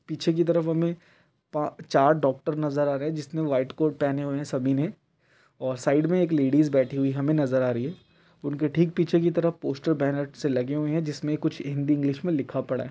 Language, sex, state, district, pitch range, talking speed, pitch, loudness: Hindi, male, Bihar, Jamui, 140-165 Hz, 230 wpm, 150 Hz, -26 LUFS